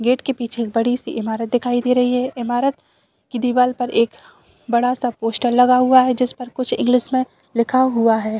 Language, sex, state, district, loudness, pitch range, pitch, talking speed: Hindi, female, Chhattisgarh, Raigarh, -18 LUFS, 235-250 Hz, 245 Hz, 220 wpm